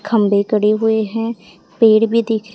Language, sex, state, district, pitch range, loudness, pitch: Hindi, female, Odisha, Sambalpur, 210-225 Hz, -15 LUFS, 220 Hz